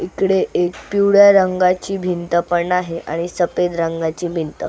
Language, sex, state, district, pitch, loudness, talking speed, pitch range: Marathi, female, Maharashtra, Solapur, 175 Hz, -17 LUFS, 140 wpm, 170-185 Hz